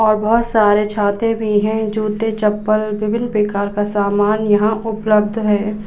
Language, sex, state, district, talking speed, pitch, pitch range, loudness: Hindi, female, Uttar Pradesh, Budaun, 145 wpm, 215 Hz, 210-220 Hz, -16 LUFS